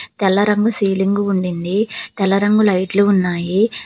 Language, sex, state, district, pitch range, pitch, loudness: Telugu, female, Telangana, Hyderabad, 190-210 Hz, 195 Hz, -16 LUFS